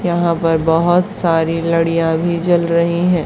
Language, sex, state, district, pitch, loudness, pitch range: Hindi, female, Haryana, Charkhi Dadri, 170 Hz, -15 LUFS, 165-175 Hz